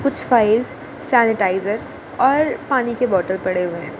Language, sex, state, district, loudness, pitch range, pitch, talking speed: Hindi, female, Gujarat, Gandhinagar, -18 LUFS, 190-265 Hz, 230 Hz, 150 wpm